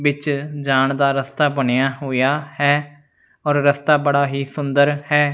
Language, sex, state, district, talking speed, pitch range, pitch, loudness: Punjabi, male, Punjab, Fazilka, 145 wpm, 140-145 Hz, 145 Hz, -18 LUFS